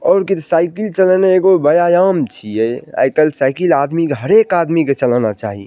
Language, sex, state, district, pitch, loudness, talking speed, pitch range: Maithili, male, Bihar, Madhepura, 165 Hz, -14 LUFS, 190 wpm, 135-185 Hz